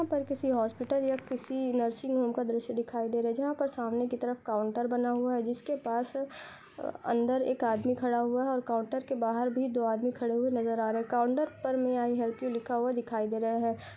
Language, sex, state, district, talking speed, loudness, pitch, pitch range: Hindi, female, Uttar Pradesh, Budaun, 240 wpm, -31 LUFS, 245 Hz, 235-255 Hz